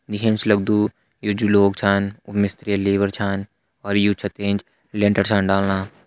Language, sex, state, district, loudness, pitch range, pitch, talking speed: Hindi, male, Uttarakhand, Tehri Garhwal, -20 LUFS, 100-105 Hz, 100 Hz, 190 wpm